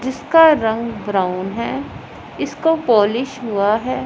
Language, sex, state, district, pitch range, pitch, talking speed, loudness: Hindi, female, Punjab, Pathankot, 205-270 Hz, 230 Hz, 120 wpm, -17 LUFS